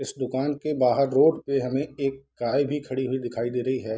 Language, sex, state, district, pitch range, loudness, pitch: Hindi, male, Bihar, Darbhanga, 130-140 Hz, -25 LUFS, 135 Hz